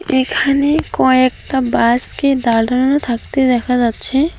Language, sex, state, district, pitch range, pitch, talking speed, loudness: Bengali, female, West Bengal, Alipurduar, 240-275 Hz, 260 Hz, 95 wpm, -14 LUFS